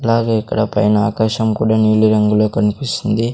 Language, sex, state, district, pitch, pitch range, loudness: Telugu, male, Andhra Pradesh, Sri Satya Sai, 110 Hz, 105-115 Hz, -15 LUFS